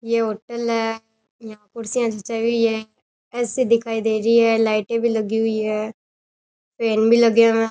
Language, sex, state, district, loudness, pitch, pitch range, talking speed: Rajasthani, female, Rajasthan, Churu, -20 LUFS, 225 Hz, 220-230 Hz, 180 wpm